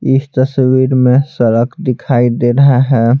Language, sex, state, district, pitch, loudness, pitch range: Hindi, male, Bihar, Patna, 130 Hz, -12 LUFS, 120-135 Hz